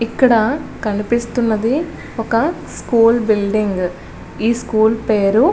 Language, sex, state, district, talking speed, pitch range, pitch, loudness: Telugu, female, Andhra Pradesh, Visakhapatnam, 100 wpm, 215-235 Hz, 225 Hz, -16 LUFS